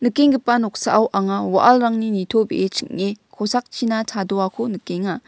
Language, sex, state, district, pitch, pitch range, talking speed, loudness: Garo, female, Meghalaya, West Garo Hills, 220 Hz, 195-240 Hz, 100 wpm, -19 LUFS